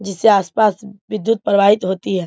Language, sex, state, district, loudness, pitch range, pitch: Hindi, female, Bihar, Bhagalpur, -16 LUFS, 195-215 Hz, 205 Hz